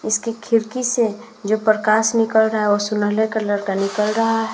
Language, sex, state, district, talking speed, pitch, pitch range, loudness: Hindi, female, Uttar Pradesh, Muzaffarnagar, 200 wpm, 220 Hz, 210-225 Hz, -19 LUFS